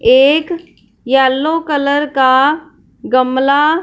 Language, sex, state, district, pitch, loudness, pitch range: Hindi, female, Punjab, Fazilka, 285 Hz, -12 LUFS, 265-310 Hz